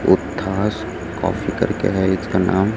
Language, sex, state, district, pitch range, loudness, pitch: Hindi, male, Chhattisgarh, Raipur, 95-105 Hz, -20 LUFS, 95 Hz